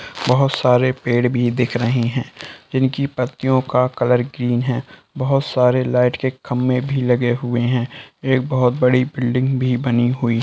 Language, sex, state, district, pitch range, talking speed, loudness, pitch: Hindi, male, Bihar, Lakhisarai, 125-130 Hz, 170 wpm, -18 LUFS, 125 Hz